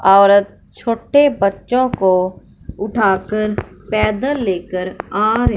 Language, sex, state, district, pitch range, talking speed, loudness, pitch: Hindi, male, Punjab, Fazilka, 195-230 Hz, 95 wpm, -16 LUFS, 205 Hz